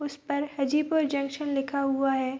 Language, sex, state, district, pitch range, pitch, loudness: Hindi, female, Bihar, Madhepura, 275-290 Hz, 280 Hz, -28 LUFS